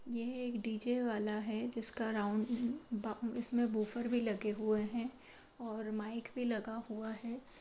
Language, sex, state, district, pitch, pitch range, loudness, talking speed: Hindi, female, Uttar Pradesh, Jalaun, 230 Hz, 215-240 Hz, -35 LUFS, 165 wpm